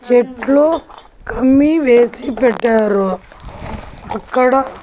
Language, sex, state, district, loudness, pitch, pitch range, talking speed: Telugu, female, Andhra Pradesh, Annamaya, -14 LUFS, 250 Hz, 240-270 Hz, 60 wpm